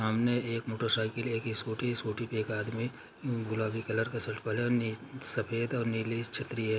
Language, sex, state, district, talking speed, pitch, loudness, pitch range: Hindi, male, Maharashtra, Nagpur, 175 wpm, 115 Hz, -33 LUFS, 110-120 Hz